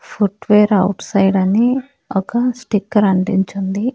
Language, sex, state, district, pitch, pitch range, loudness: Telugu, female, Andhra Pradesh, Annamaya, 205 Hz, 195-235 Hz, -16 LUFS